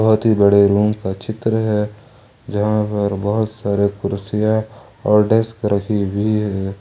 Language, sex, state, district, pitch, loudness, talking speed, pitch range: Hindi, male, Jharkhand, Ranchi, 105 Hz, -18 LUFS, 150 wpm, 100-110 Hz